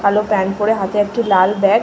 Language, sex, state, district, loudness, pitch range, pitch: Bengali, female, West Bengal, Malda, -16 LUFS, 195-210 Hz, 205 Hz